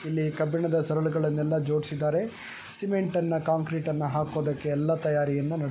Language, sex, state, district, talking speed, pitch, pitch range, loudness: Kannada, male, Karnataka, Chamarajanagar, 115 wpm, 155 Hz, 150-160 Hz, -28 LUFS